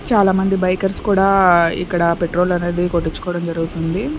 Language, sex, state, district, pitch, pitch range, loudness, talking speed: Telugu, female, Andhra Pradesh, Sri Satya Sai, 180 Hz, 170-190 Hz, -17 LUFS, 115 wpm